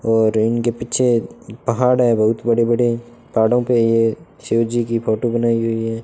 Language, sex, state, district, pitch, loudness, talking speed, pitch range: Hindi, male, Rajasthan, Bikaner, 115 Hz, -18 LUFS, 180 wpm, 115-120 Hz